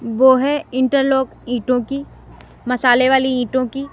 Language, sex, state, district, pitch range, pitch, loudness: Hindi, female, Uttar Pradesh, Lalitpur, 250-270 Hz, 260 Hz, -17 LUFS